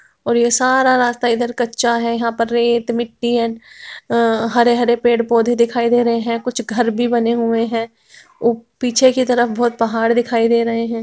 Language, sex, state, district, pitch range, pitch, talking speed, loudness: Hindi, female, Bihar, Begusarai, 230-240 Hz, 235 Hz, 180 wpm, -16 LUFS